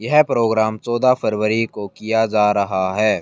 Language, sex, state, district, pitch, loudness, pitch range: Hindi, male, Haryana, Jhajjar, 110 Hz, -18 LUFS, 105-115 Hz